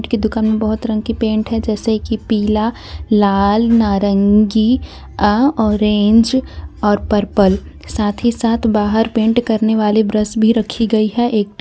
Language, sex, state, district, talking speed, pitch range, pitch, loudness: Hindi, female, Jharkhand, Garhwa, 160 wpm, 210-230 Hz, 220 Hz, -15 LUFS